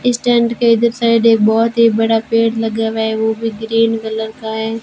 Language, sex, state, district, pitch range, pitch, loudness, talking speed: Hindi, female, Rajasthan, Bikaner, 220-230 Hz, 225 Hz, -14 LUFS, 235 wpm